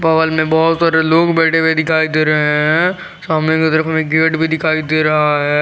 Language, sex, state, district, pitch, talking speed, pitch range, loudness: Hindi, male, Jharkhand, Garhwa, 160 Hz, 225 wpm, 155-160 Hz, -14 LUFS